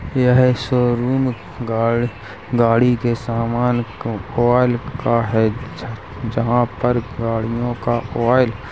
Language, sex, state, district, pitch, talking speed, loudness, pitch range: Hindi, male, Uttar Pradesh, Jalaun, 120 Hz, 125 wpm, -19 LUFS, 115-125 Hz